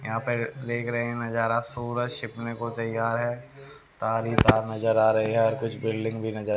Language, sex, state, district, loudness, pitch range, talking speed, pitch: Hindi, male, Haryana, Rohtak, -26 LUFS, 110-120 Hz, 200 wpm, 115 Hz